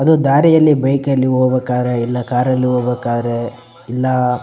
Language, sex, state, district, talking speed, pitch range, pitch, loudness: Kannada, male, Karnataka, Bellary, 150 wpm, 125-135 Hz, 125 Hz, -15 LUFS